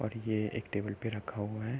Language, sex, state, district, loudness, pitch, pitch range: Hindi, male, Uttar Pradesh, Gorakhpur, -36 LUFS, 110 Hz, 105-115 Hz